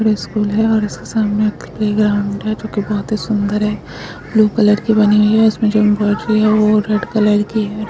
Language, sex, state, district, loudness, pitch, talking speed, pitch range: Bhojpuri, female, Uttar Pradesh, Gorakhpur, -15 LUFS, 210 Hz, 230 wpm, 210-215 Hz